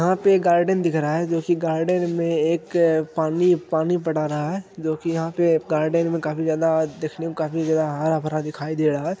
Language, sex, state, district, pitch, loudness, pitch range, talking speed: Hindi, male, Bihar, Araria, 165 Hz, -22 LUFS, 155-170 Hz, 230 wpm